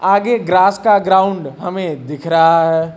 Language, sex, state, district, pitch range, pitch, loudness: Hindi, male, Uttar Pradesh, Lucknow, 165-195 Hz, 180 Hz, -14 LUFS